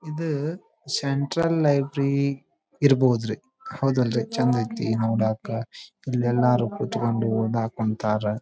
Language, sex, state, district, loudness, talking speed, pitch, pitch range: Kannada, male, Karnataka, Dharwad, -24 LUFS, 100 wpm, 125 Hz, 115-140 Hz